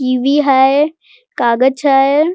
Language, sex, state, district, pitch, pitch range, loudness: Marathi, female, Maharashtra, Nagpur, 275 Hz, 260-295 Hz, -12 LUFS